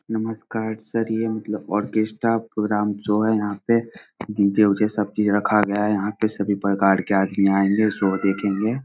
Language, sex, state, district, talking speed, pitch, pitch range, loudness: Hindi, male, Bihar, Samastipur, 205 wpm, 105 Hz, 100-110 Hz, -21 LUFS